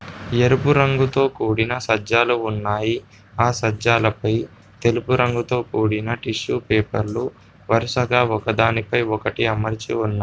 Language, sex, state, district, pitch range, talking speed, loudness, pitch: Telugu, male, Telangana, Komaram Bheem, 110-120 Hz, 100 wpm, -20 LUFS, 115 Hz